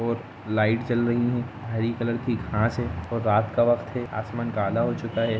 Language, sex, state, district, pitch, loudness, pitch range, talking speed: Hindi, male, Jharkhand, Sahebganj, 115 Hz, -26 LUFS, 110-120 Hz, 210 wpm